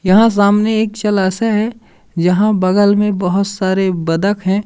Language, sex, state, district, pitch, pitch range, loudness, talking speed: Hindi, male, Madhya Pradesh, Umaria, 200 Hz, 185-210 Hz, -14 LUFS, 155 wpm